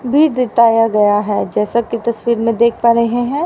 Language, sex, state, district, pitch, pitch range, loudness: Hindi, female, Haryana, Rohtak, 235 Hz, 225-240 Hz, -14 LUFS